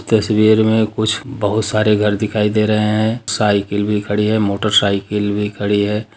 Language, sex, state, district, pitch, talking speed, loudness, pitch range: Hindi, male, Bihar, Darbhanga, 105 Hz, 185 wpm, -16 LUFS, 105-110 Hz